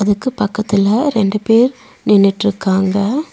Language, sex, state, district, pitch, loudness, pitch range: Tamil, female, Tamil Nadu, Nilgiris, 210 Hz, -15 LUFS, 200-235 Hz